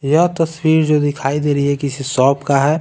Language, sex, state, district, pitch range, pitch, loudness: Hindi, male, Bihar, Patna, 140-160 Hz, 145 Hz, -16 LUFS